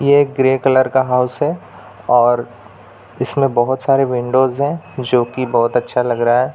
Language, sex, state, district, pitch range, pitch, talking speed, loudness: Hindi, male, Bihar, Jamui, 120-130 Hz, 125 Hz, 185 wpm, -16 LUFS